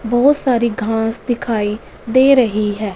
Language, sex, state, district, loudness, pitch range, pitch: Hindi, female, Punjab, Fazilka, -16 LUFS, 215-250 Hz, 235 Hz